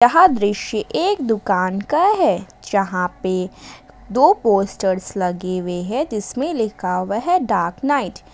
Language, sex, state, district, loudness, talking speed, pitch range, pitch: Hindi, female, Jharkhand, Ranchi, -19 LUFS, 145 wpm, 185-270 Hz, 205 Hz